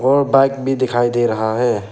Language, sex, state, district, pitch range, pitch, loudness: Hindi, male, Arunachal Pradesh, Papum Pare, 120-135 Hz, 125 Hz, -16 LUFS